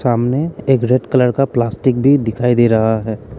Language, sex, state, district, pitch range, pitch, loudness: Hindi, male, Arunachal Pradesh, Lower Dibang Valley, 115-135 Hz, 125 Hz, -15 LUFS